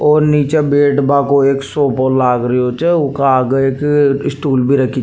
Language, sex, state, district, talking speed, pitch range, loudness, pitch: Rajasthani, male, Rajasthan, Nagaur, 205 wpm, 130-145 Hz, -13 LUFS, 140 Hz